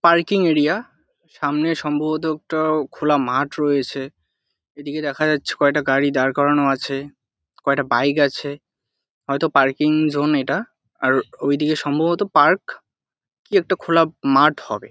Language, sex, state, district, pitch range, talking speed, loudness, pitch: Bengali, male, West Bengal, Jalpaiguri, 140-155 Hz, 130 wpm, -19 LUFS, 145 Hz